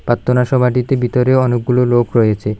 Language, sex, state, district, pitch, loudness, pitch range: Bengali, male, Tripura, South Tripura, 125 Hz, -14 LUFS, 120-125 Hz